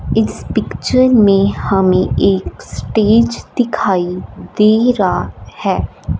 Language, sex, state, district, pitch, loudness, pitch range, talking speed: Hindi, female, Punjab, Fazilka, 205 Hz, -14 LUFS, 190-230 Hz, 95 wpm